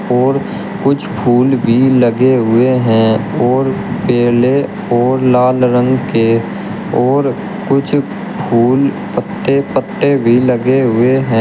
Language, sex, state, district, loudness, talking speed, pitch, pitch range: Hindi, male, Uttar Pradesh, Shamli, -13 LUFS, 115 wpm, 125 Hz, 120-135 Hz